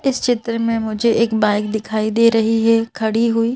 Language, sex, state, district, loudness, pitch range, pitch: Hindi, female, Madhya Pradesh, Bhopal, -17 LUFS, 220-230 Hz, 230 Hz